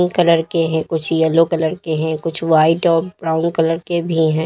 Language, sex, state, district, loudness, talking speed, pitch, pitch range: Hindi, female, Uttar Pradesh, Lalitpur, -17 LUFS, 215 wpm, 165 Hz, 160-170 Hz